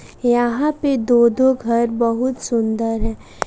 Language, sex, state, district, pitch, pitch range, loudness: Hindi, female, Bihar, West Champaran, 240 Hz, 230-260 Hz, -18 LUFS